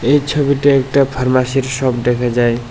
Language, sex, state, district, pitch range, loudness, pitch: Bengali, male, Tripura, West Tripura, 120-140 Hz, -15 LUFS, 130 Hz